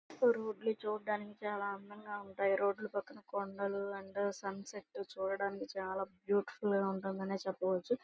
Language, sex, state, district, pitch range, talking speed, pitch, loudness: Telugu, female, Andhra Pradesh, Guntur, 195-210 Hz, 125 wpm, 200 Hz, -38 LUFS